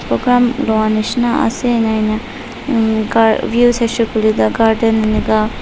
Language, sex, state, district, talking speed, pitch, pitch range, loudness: Nagamese, female, Nagaland, Dimapur, 130 wpm, 225 Hz, 220-240 Hz, -14 LUFS